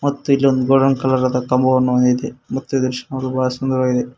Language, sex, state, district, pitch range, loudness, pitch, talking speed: Kannada, male, Karnataka, Koppal, 125-135 Hz, -17 LUFS, 130 Hz, 200 wpm